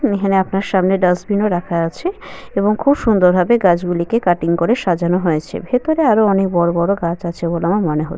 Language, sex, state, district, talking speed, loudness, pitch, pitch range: Bengali, female, West Bengal, Malda, 200 wpm, -16 LUFS, 185 Hz, 170-210 Hz